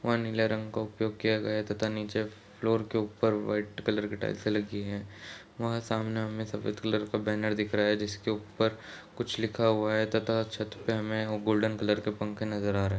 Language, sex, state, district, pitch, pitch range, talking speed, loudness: Hindi, male, Bihar, Kishanganj, 110 Hz, 105-110 Hz, 210 wpm, -31 LUFS